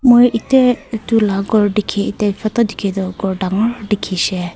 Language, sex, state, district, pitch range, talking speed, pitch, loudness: Nagamese, female, Nagaland, Kohima, 195-230 Hz, 185 wpm, 210 Hz, -16 LUFS